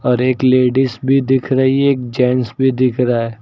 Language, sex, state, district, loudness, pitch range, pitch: Hindi, male, Uttar Pradesh, Lucknow, -15 LUFS, 125-130 Hz, 130 Hz